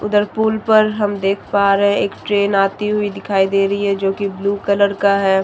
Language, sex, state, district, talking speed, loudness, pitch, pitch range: Hindi, female, Jharkhand, Deoghar, 240 wpm, -16 LUFS, 200 Hz, 195-205 Hz